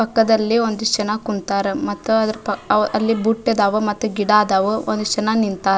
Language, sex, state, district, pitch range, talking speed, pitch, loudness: Kannada, female, Karnataka, Dharwad, 205-225 Hz, 155 wpm, 215 Hz, -18 LUFS